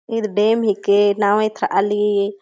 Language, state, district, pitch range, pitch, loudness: Kurukh, Chhattisgarh, Jashpur, 205-215 Hz, 205 Hz, -17 LUFS